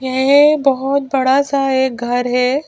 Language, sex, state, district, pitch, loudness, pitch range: Hindi, female, Madhya Pradesh, Bhopal, 270 Hz, -14 LUFS, 260-280 Hz